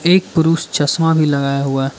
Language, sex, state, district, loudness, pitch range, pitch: Hindi, male, Arunachal Pradesh, Lower Dibang Valley, -15 LUFS, 140-165 Hz, 155 Hz